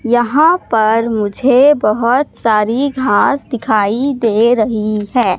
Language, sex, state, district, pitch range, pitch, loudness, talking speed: Hindi, female, Madhya Pradesh, Katni, 215-265 Hz, 230 Hz, -13 LUFS, 110 wpm